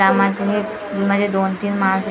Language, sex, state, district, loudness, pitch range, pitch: Marathi, female, Maharashtra, Gondia, -19 LUFS, 195-205 Hz, 200 Hz